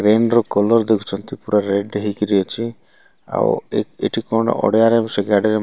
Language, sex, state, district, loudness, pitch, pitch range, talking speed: Odia, male, Odisha, Malkangiri, -18 LUFS, 110 Hz, 105-115 Hz, 150 wpm